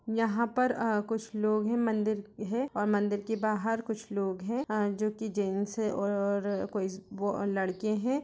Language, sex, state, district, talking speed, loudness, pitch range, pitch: Hindi, female, Chhattisgarh, Kabirdham, 165 wpm, -31 LUFS, 205-225 Hz, 215 Hz